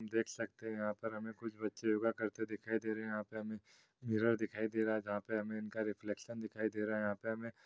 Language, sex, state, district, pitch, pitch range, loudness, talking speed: Hindi, male, Chhattisgarh, Kabirdham, 110 Hz, 105-110 Hz, -40 LUFS, 265 wpm